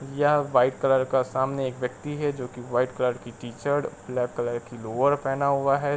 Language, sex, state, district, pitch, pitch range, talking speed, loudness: Hindi, male, Uttar Pradesh, Varanasi, 130 Hz, 125-140 Hz, 170 wpm, -26 LUFS